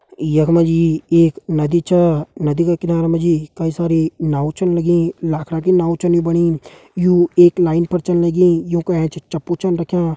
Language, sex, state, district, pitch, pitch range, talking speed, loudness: Hindi, male, Uttarakhand, Uttarkashi, 170 Hz, 160-175 Hz, 200 wpm, -16 LUFS